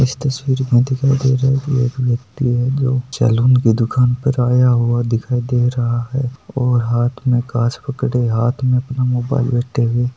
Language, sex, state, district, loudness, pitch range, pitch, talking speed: Hindi, male, Rajasthan, Nagaur, -17 LUFS, 120-130 Hz, 125 Hz, 195 wpm